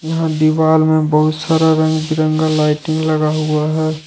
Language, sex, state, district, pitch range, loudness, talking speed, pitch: Hindi, male, Jharkhand, Ranchi, 155-160 Hz, -15 LUFS, 160 wpm, 155 Hz